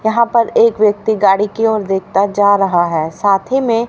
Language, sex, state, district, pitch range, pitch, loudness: Hindi, female, Haryana, Rohtak, 195-225 Hz, 205 Hz, -13 LUFS